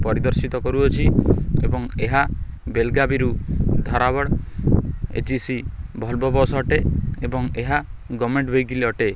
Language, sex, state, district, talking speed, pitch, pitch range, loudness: Odia, male, Odisha, Khordha, 100 wpm, 125 Hz, 115-130 Hz, -21 LUFS